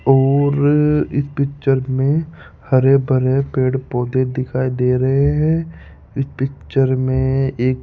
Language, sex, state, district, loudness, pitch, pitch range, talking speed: Hindi, male, Rajasthan, Jaipur, -17 LUFS, 135 Hz, 130-140 Hz, 130 wpm